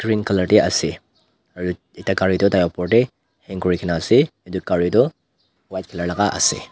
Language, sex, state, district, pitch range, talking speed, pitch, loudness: Nagamese, male, Nagaland, Dimapur, 90-100 Hz, 195 wpm, 90 Hz, -19 LUFS